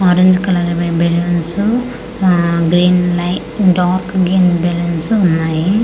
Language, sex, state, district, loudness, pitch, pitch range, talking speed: Telugu, female, Andhra Pradesh, Manyam, -14 LUFS, 180 Hz, 170-185 Hz, 105 wpm